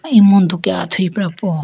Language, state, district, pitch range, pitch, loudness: Idu Mishmi, Arunachal Pradesh, Lower Dibang Valley, 180-205 Hz, 190 Hz, -14 LUFS